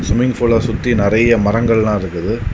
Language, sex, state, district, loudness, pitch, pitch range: Tamil, male, Tamil Nadu, Kanyakumari, -15 LUFS, 115 Hz, 105-120 Hz